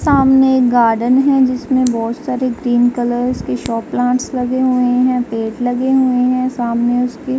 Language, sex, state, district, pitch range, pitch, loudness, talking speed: Hindi, female, Uttar Pradesh, Jalaun, 240-260 Hz, 250 Hz, -15 LUFS, 170 wpm